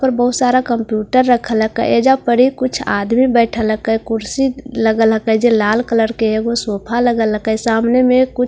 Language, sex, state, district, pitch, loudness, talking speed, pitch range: Hindi, female, Bihar, Katihar, 235 Hz, -15 LUFS, 225 wpm, 220-250 Hz